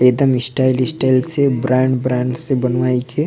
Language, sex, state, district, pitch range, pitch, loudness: Sadri, male, Chhattisgarh, Jashpur, 125-130 Hz, 130 Hz, -16 LUFS